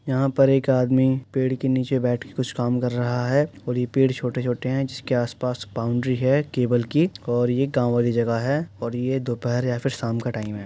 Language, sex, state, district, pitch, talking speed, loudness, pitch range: Hindi, male, Uttar Pradesh, Jyotiba Phule Nagar, 125 Hz, 220 wpm, -23 LUFS, 120-135 Hz